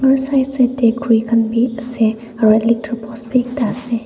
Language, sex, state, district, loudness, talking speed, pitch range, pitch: Nagamese, female, Nagaland, Dimapur, -16 LUFS, 205 wpm, 225-250 Hz, 235 Hz